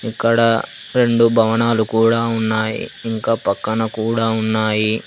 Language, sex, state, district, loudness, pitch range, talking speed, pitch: Telugu, male, Telangana, Hyderabad, -17 LUFS, 110-115 Hz, 105 wpm, 115 Hz